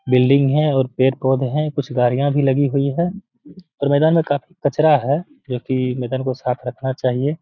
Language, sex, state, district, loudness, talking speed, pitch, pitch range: Hindi, male, Bihar, Gaya, -19 LUFS, 195 wpm, 140 Hz, 130-150 Hz